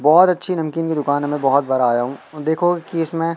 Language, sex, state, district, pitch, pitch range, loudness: Hindi, male, Madhya Pradesh, Katni, 160 Hz, 145-165 Hz, -18 LUFS